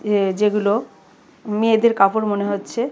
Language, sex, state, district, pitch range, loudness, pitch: Bengali, female, Tripura, West Tripura, 200-225 Hz, -19 LUFS, 210 Hz